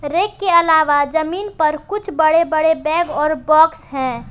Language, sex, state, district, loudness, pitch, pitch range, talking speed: Hindi, female, Jharkhand, Palamu, -16 LUFS, 320 Hz, 305-340 Hz, 165 wpm